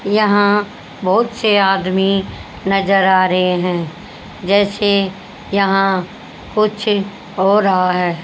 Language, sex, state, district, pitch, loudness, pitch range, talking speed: Hindi, female, Haryana, Jhajjar, 195 Hz, -15 LUFS, 185-205 Hz, 100 wpm